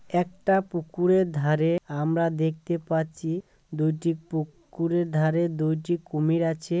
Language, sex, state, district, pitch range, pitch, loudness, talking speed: Bengali, male, West Bengal, Kolkata, 155-175 Hz, 165 Hz, -26 LUFS, 115 wpm